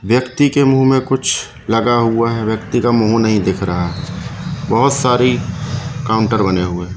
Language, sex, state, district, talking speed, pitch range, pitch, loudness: Hindi, male, Madhya Pradesh, Katni, 180 wpm, 110-130 Hz, 115 Hz, -15 LUFS